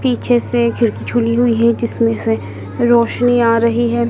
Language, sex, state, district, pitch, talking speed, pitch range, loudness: Hindi, female, Madhya Pradesh, Dhar, 235 Hz, 175 wpm, 230-240 Hz, -15 LUFS